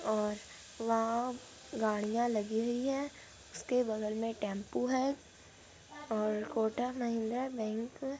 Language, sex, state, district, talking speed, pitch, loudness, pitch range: Hindi, female, Andhra Pradesh, Anantapur, 110 wpm, 230 Hz, -35 LUFS, 215-250 Hz